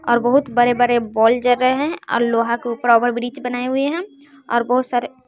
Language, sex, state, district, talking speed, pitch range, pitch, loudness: Hindi, male, Bihar, West Champaran, 225 wpm, 235-255 Hz, 245 Hz, -18 LUFS